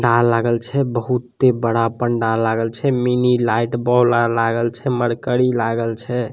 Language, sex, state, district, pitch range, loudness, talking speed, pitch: Maithili, male, Bihar, Samastipur, 115-125 Hz, -18 LUFS, 140 wpm, 120 Hz